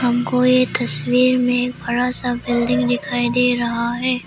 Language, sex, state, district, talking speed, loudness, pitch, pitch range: Hindi, female, Arunachal Pradesh, Lower Dibang Valley, 140 wpm, -17 LUFS, 245 Hz, 240-250 Hz